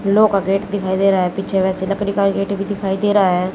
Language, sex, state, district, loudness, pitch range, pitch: Hindi, female, Haryana, Jhajjar, -17 LUFS, 190-200 Hz, 195 Hz